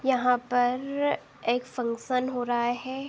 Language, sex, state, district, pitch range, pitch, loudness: Hindi, female, Uttar Pradesh, Deoria, 245-260 Hz, 250 Hz, -27 LUFS